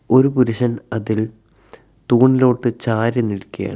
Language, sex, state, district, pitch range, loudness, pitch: Malayalam, male, Kerala, Kollam, 110-125 Hz, -18 LUFS, 120 Hz